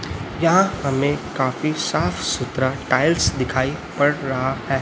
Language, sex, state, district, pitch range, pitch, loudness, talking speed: Hindi, male, Chhattisgarh, Raipur, 125-145 Hz, 130 Hz, -20 LUFS, 125 wpm